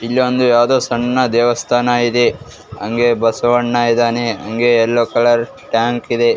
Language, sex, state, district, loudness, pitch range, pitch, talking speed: Kannada, male, Karnataka, Raichur, -15 LUFS, 115-120 Hz, 120 Hz, 130 wpm